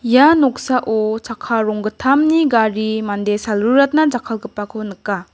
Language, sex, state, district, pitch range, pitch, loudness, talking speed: Garo, female, Meghalaya, West Garo Hills, 215-260 Hz, 225 Hz, -16 LUFS, 100 wpm